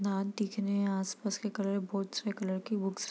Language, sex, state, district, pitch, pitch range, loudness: Hindi, female, Bihar, East Champaran, 200 Hz, 195-205 Hz, -34 LUFS